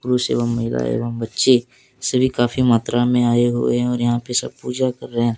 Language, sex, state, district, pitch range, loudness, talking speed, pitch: Hindi, male, Jharkhand, Deoghar, 120-125 Hz, -19 LUFS, 235 wpm, 120 Hz